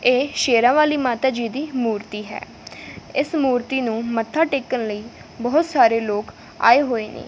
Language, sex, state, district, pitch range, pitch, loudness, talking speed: Punjabi, female, Punjab, Fazilka, 225-275 Hz, 245 Hz, -20 LUFS, 165 wpm